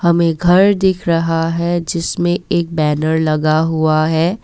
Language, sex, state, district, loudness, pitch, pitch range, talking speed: Hindi, female, Assam, Kamrup Metropolitan, -15 LUFS, 170 Hz, 160-175 Hz, 150 wpm